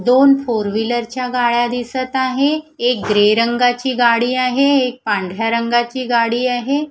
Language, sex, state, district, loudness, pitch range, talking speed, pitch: Marathi, female, Maharashtra, Gondia, -16 LUFS, 235-260 Hz, 150 wpm, 245 Hz